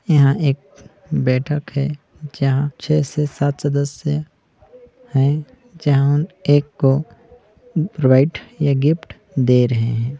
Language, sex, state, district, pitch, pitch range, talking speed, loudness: Hindi, male, Chhattisgarh, Sarguja, 145 Hz, 135-155 Hz, 110 wpm, -18 LUFS